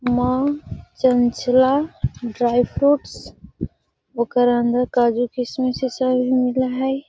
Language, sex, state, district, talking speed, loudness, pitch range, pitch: Magahi, female, Bihar, Gaya, 110 wpm, -19 LUFS, 245-260 Hz, 250 Hz